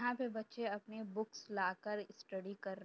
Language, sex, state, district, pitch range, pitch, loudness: Hindi, female, Uttar Pradesh, Jyotiba Phule Nagar, 195-220 Hz, 210 Hz, -43 LUFS